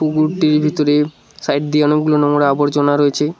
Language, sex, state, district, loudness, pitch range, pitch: Bengali, male, West Bengal, Cooch Behar, -15 LUFS, 145-150 Hz, 150 Hz